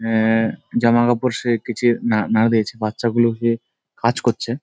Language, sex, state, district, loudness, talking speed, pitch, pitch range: Bengali, male, West Bengal, Dakshin Dinajpur, -19 LUFS, 145 wpm, 115 Hz, 115-120 Hz